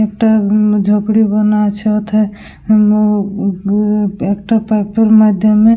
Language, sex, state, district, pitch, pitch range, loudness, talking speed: Bengali, female, West Bengal, Dakshin Dinajpur, 210 Hz, 205-215 Hz, -12 LUFS, 115 wpm